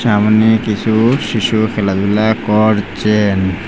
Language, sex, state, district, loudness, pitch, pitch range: Bengali, male, Assam, Hailakandi, -13 LUFS, 110 Hz, 105-110 Hz